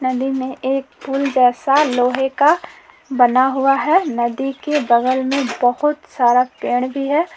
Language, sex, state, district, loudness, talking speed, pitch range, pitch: Hindi, female, Jharkhand, Palamu, -17 LUFS, 165 wpm, 255-285 Hz, 270 Hz